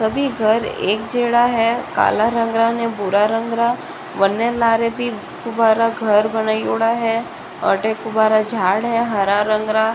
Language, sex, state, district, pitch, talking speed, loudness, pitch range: Rajasthani, female, Rajasthan, Nagaur, 225 Hz, 155 wpm, -18 LUFS, 215-230 Hz